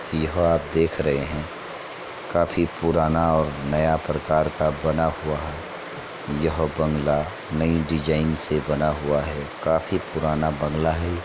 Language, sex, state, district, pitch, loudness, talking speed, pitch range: Hindi, male, Uttar Pradesh, Etah, 80 Hz, -24 LUFS, 145 wpm, 75-80 Hz